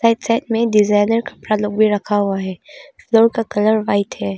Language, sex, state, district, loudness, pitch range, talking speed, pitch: Hindi, female, Arunachal Pradesh, Longding, -17 LUFS, 205-230 Hz, 205 wpm, 215 Hz